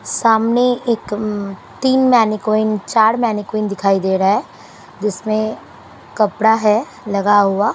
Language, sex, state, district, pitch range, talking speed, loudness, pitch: Hindi, female, Punjab, Pathankot, 205-225 Hz, 115 wpm, -16 LUFS, 215 Hz